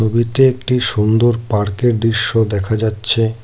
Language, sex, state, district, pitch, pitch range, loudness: Bengali, male, West Bengal, Cooch Behar, 115 Hz, 110-120 Hz, -15 LUFS